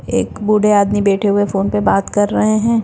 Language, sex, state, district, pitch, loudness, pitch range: Hindi, female, Bihar, Jamui, 205 Hz, -15 LUFS, 200-215 Hz